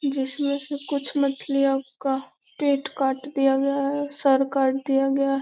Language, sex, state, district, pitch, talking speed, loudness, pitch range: Hindi, female, Bihar, Gopalganj, 275 Hz, 165 wpm, -24 LUFS, 270-280 Hz